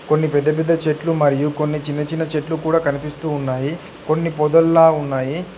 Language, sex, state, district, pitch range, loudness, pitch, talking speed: Telugu, male, Telangana, Hyderabad, 145-165 Hz, -18 LUFS, 155 Hz, 160 wpm